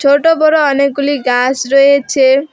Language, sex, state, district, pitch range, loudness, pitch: Bengali, female, West Bengal, Alipurduar, 265-285 Hz, -11 LUFS, 280 Hz